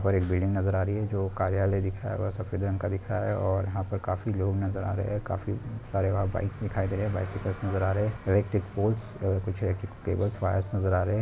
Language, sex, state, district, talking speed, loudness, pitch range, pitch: Hindi, male, Bihar, Jahanabad, 255 wpm, -29 LUFS, 95-105 Hz, 100 Hz